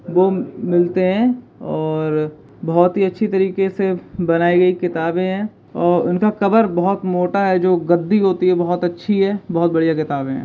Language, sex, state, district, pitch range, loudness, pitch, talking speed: Hindi, male, Bihar, Begusarai, 170-195 Hz, -17 LUFS, 180 Hz, 160 wpm